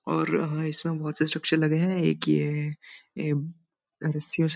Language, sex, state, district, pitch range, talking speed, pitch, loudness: Hindi, male, Uttarakhand, Uttarkashi, 150-160 Hz, 195 wpm, 155 Hz, -27 LUFS